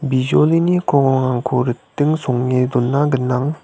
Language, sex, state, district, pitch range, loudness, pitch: Garo, male, Meghalaya, West Garo Hills, 125-145 Hz, -17 LUFS, 130 Hz